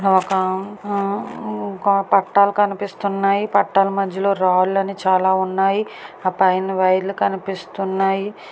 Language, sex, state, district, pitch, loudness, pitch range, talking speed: Telugu, female, Andhra Pradesh, Srikakulam, 195 Hz, -19 LUFS, 190-200 Hz, 105 wpm